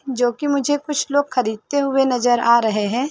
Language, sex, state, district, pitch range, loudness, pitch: Hindi, female, Uttar Pradesh, Varanasi, 240-285 Hz, -19 LUFS, 260 Hz